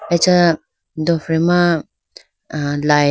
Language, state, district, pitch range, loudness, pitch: Idu Mishmi, Arunachal Pradesh, Lower Dibang Valley, 150-170 Hz, -16 LUFS, 165 Hz